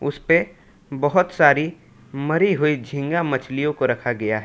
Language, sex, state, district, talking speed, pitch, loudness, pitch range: Hindi, male, Jharkhand, Palamu, 150 wpm, 145 Hz, -20 LUFS, 135-165 Hz